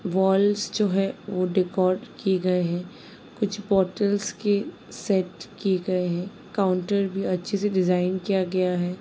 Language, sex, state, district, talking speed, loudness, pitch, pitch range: Hindi, female, Bihar, Sitamarhi, 155 wpm, -25 LUFS, 190 Hz, 185-205 Hz